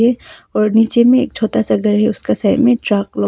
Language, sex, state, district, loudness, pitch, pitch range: Hindi, female, Arunachal Pradesh, Papum Pare, -14 LUFS, 220 Hz, 210-240 Hz